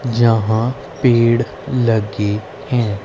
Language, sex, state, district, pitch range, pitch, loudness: Hindi, female, Haryana, Rohtak, 110-125 Hz, 115 Hz, -17 LUFS